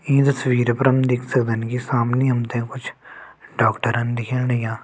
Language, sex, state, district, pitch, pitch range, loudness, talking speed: Garhwali, male, Uttarakhand, Uttarkashi, 125 Hz, 120-130 Hz, -20 LUFS, 175 wpm